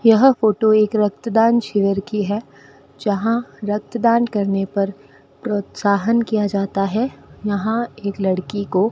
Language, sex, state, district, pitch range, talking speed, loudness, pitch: Hindi, female, Rajasthan, Bikaner, 195-225 Hz, 135 wpm, -19 LUFS, 205 Hz